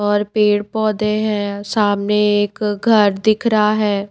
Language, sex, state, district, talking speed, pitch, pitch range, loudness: Hindi, female, Himachal Pradesh, Shimla, 145 wpm, 210 Hz, 205-215 Hz, -16 LUFS